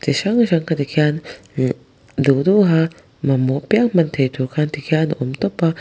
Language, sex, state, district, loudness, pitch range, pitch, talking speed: Mizo, male, Mizoram, Aizawl, -18 LUFS, 135-165 Hz, 150 Hz, 225 wpm